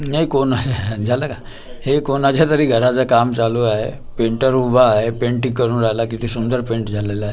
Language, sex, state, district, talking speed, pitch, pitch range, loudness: Marathi, male, Maharashtra, Gondia, 180 wpm, 120 Hz, 115-130 Hz, -17 LUFS